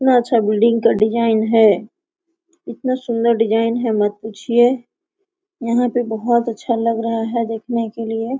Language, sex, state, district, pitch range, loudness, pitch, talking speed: Hindi, female, Jharkhand, Sahebganj, 225-250 Hz, -17 LUFS, 235 Hz, 155 wpm